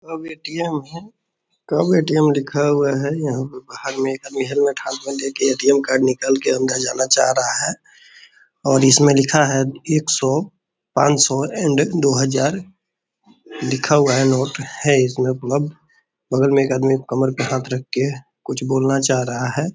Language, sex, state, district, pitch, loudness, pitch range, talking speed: Hindi, male, Bihar, Purnia, 135 Hz, -18 LUFS, 130-150 Hz, 180 wpm